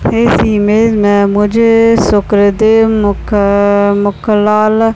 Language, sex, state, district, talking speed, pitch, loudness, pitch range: Hindi, male, Bihar, Purnia, 110 wpm, 210 Hz, -10 LUFS, 205-225 Hz